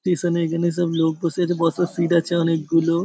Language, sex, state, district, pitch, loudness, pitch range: Bengali, male, West Bengal, Paschim Medinipur, 170 Hz, -21 LUFS, 165-175 Hz